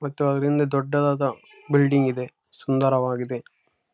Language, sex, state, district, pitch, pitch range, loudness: Kannada, male, Karnataka, Raichur, 140 Hz, 130-145 Hz, -23 LUFS